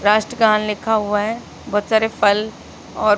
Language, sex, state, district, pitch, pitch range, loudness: Hindi, female, Madhya Pradesh, Katni, 215 Hz, 210-220 Hz, -18 LUFS